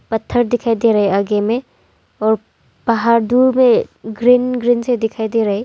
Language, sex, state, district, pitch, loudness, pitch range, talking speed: Hindi, female, Arunachal Pradesh, Longding, 230 Hz, -15 LUFS, 220-245 Hz, 170 wpm